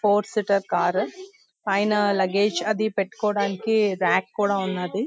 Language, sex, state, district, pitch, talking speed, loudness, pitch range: Telugu, female, Andhra Pradesh, Visakhapatnam, 205 Hz, 120 wpm, -23 LUFS, 195-215 Hz